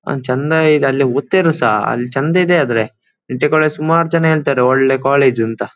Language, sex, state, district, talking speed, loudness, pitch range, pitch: Kannada, male, Karnataka, Dakshina Kannada, 155 wpm, -14 LUFS, 125-160 Hz, 140 Hz